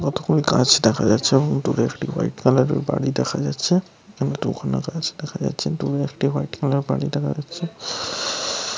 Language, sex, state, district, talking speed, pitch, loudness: Bengali, male, West Bengal, Paschim Medinipur, 180 wpm, 140 Hz, -21 LUFS